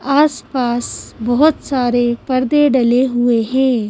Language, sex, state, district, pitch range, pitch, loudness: Hindi, female, Madhya Pradesh, Bhopal, 240-275 Hz, 255 Hz, -15 LUFS